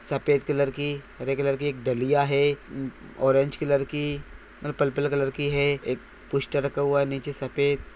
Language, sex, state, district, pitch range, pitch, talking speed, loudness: Hindi, male, Maharashtra, Solapur, 135-145 Hz, 140 Hz, 130 wpm, -26 LUFS